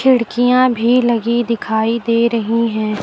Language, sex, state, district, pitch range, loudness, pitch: Hindi, female, Uttar Pradesh, Lucknow, 230-240 Hz, -15 LUFS, 235 Hz